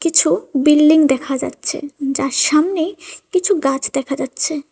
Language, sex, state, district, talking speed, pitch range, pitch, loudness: Bengali, female, Tripura, West Tripura, 125 wpm, 275-330 Hz, 300 Hz, -16 LUFS